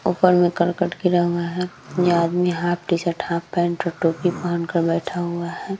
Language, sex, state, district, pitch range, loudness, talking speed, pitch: Hindi, female, Bihar, Vaishali, 170-180 Hz, -21 LUFS, 175 wpm, 175 Hz